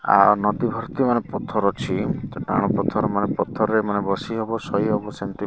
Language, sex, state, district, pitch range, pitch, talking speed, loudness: Odia, male, Odisha, Malkangiri, 100-115 Hz, 105 Hz, 195 wpm, -22 LUFS